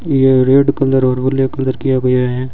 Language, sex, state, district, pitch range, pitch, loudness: Hindi, male, Rajasthan, Bikaner, 130-135 Hz, 130 Hz, -13 LUFS